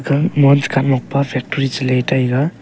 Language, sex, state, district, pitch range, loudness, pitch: Wancho, male, Arunachal Pradesh, Longding, 130-140 Hz, -16 LUFS, 135 Hz